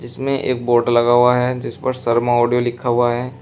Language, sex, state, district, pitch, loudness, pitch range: Hindi, male, Uttar Pradesh, Shamli, 120 Hz, -17 LUFS, 120-125 Hz